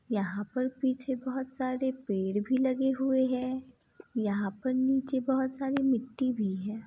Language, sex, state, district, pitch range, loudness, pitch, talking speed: Hindi, female, Bihar, East Champaran, 220-265 Hz, -31 LUFS, 255 Hz, 155 wpm